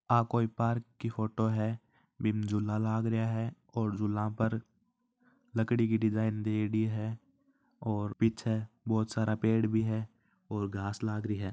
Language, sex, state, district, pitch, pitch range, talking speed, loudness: Marwari, male, Rajasthan, Churu, 110 Hz, 110-115 Hz, 155 wpm, -32 LUFS